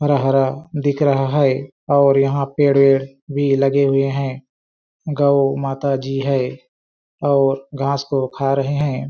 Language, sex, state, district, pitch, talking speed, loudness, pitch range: Hindi, male, Chhattisgarh, Balrampur, 135 Hz, 140 wpm, -18 LUFS, 135-140 Hz